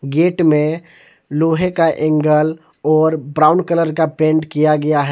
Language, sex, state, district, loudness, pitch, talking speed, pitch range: Hindi, male, Jharkhand, Palamu, -15 LUFS, 155 Hz, 150 wpm, 155-165 Hz